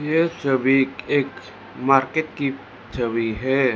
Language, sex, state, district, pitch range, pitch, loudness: Hindi, male, Arunachal Pradesh, Lower Dibang Valley, 125-145 Hz, 135 Hz, -21 LUFS